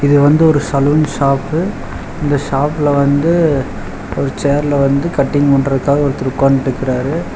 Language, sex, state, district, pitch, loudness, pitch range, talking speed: Tamil, male, Tamil Nadu, Chennai, 140 Hz, -14 LUFS, 135-145 Hz, 120 wpm